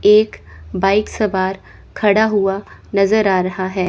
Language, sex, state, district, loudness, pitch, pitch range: Hindi, female, Chandigarh, Chandigarh, -17 LUFS, 195 Hz, 185-210 Hz